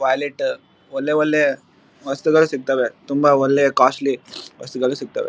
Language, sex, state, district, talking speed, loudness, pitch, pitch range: Kannada, male, Karnataka, Bellary, 115 wpm, -19 LUFS, 140 Hz, 135-155 Hz